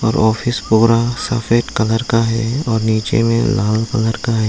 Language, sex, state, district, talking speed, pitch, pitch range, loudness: Hindi, male, Tripura, Dhalai, 185 wpm, 115 Hz, 110-115 Hz, -16 LUFS